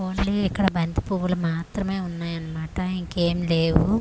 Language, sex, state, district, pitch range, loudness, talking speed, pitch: Telugu, female, Andhra Pradesh, Manyam, 165-190 Hz, -25 LUFS, 120 wpm, 175 Hz